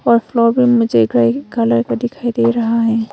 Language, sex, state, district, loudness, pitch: Hindi, female, Arunachal Pradesh, Longding, -15 LUFS, 230 Hz